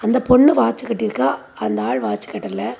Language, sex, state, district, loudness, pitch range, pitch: Tamil, female, Tamil Nadu, Kanyakumari, -18 LUFS, 215-255 Hz, 235 Hz